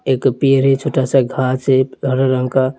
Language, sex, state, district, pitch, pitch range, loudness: Hindi, male, Uttar Pradesh, Hamirpur, 130 Hz, 130-135 Hz, -15 LUFS